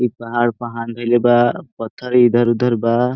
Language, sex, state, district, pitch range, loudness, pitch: Bhojpuri, male, Bihar, Saran, 115-120 Hz, -16 LUFS, 120 Hz